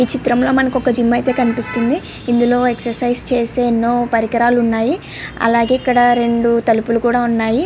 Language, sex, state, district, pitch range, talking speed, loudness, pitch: Telugu, female, Andhra Pradesh, Srikakulam, 235-250 Hz, 155 wpm, -15 LUFS, 240 Hz